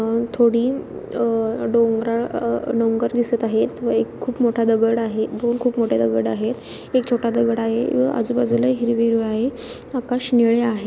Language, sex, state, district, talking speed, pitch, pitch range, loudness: Marathi, female, Maharashtra, Sindhudurg, 170 wpm, 235 Hz, 225-240 Hz, -20 LUFS